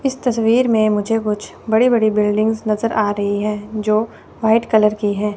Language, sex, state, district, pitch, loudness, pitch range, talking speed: Hindi, female, Chandigarh, Chandigarh, 215 Hz, -17 LUFS, 210-225 Hz, 180 wpm